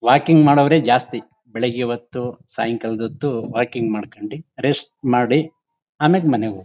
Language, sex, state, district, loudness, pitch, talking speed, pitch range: Kannada, male, Karnataka, Mysore, -19 LUFS, 125 Hz, 125 wpm, 115-145 Hz